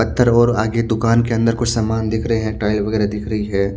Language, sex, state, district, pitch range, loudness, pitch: Hindi, male, Haryana, Charkhi Dadri, 110-115 Hz, -17 LUFS, 110 Hz